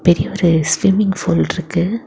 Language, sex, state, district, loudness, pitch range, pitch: Tamil, female, Tamil Nadu, Kanyakumari, -16 LUFS, 170-195 Hz, 180 Hz